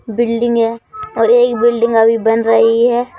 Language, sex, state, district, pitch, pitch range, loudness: Hindi, male, Madhya Pradesh, Bhopal, 230 Hz, 225-240 Hz, -13 LUFS